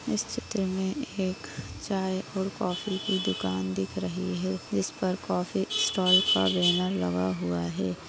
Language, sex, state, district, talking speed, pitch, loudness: Hindi, female, Maharashtra, Aurangabad, 150 wpm, 175 Hz, -28 LUFS